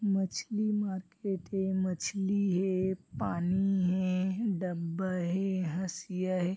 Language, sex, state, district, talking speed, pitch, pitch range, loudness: Chhattisgarhi, male, Chhattisgarh, Bilaspur, 100 wpm, 190 Hz, 180-195 Hz, -32 LUFS